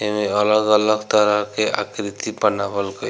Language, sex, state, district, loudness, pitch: Bhojpuri, male, Bihar, Gopalganj, -19 LUFS, 105 Hz